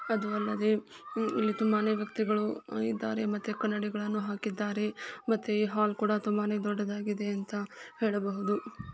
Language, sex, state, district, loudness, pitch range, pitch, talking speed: Kannada, female, Karnataka, Gulbarga, -32 LUFS, 205-215 Hz, 210 Hz, 120 wpm